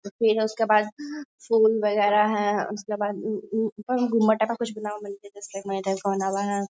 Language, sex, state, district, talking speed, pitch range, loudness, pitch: Hindi, female, Bihar, Sitamarhi, 105 wpm, 200-220 Hz, -24 LUFS, 210 Hz